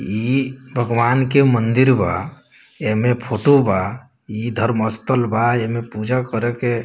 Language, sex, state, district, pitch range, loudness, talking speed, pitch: Bhojpuri, male, Bihar, Muzaffarpur, 110-125 Hz, -18 LUFS, 160 wpm, 120 Hz